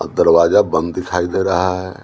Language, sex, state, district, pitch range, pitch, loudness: Hindi, male, Bihar, Patna, 85-95 Hz, 90 Hz, -15 LUFS